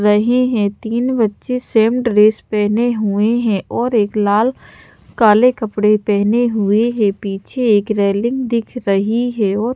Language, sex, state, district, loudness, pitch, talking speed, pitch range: Hindi, female, Madhya Pradesh, Bhopal, -15 LUFS, 220 Hz, 145 wpm, 210-240 Hz